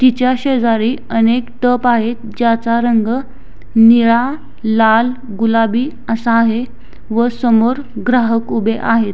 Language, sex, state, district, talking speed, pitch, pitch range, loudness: Marathi, female, Maharashtra, Sindhudurg, 110 wpm, 230 Hz, 225-245 Hz, -14 LUFS